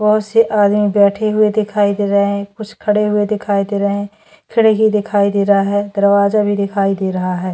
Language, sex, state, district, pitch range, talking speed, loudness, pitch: Hindi, female, Maharashtra, Chandrapur, 200-210 Hz, 215 wpm, -15 LUFS, 205 Hz